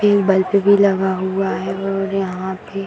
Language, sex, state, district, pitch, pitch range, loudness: Hindi, female, Bihar, Madhepura, 195 Hz, 190-195 Hz, -18 LUFS